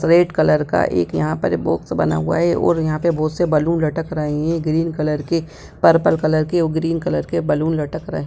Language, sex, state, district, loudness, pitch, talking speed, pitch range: Hindi, female, Bihar, Sitamarhi, -18 LUFS, 155 Hz, 230 wpm, 150-165 Hz